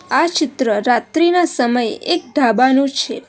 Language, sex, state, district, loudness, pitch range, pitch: Gujarati, female, Gujarat, Valsad, -16 LUFS, 240-320 Hz, 265 Hz